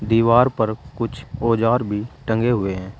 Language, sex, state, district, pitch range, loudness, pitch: Hindi, male, Uttar Pradesh, Saharanpur, 105-120 Hz, -20 LUFS, 115 Hz